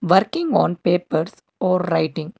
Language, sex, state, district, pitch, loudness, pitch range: English, male, Karnataka, Bangalore, 175 Hz, -20 LUFS, 160-190 Hz